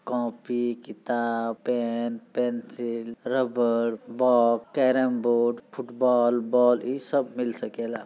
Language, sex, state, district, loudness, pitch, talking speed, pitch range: Bhojpuri, male, Uttar Pradesh, Gorakhpur, -26 LUFS, 120 Hz, 105 wpm, 115-125 Hz